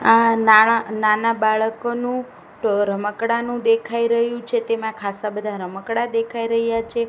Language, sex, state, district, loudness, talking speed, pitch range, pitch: Gujarati, female, Gujarat, Gandhinagar, -20 LUFS, 145 wpm, 215-235 Hz, 230 Hz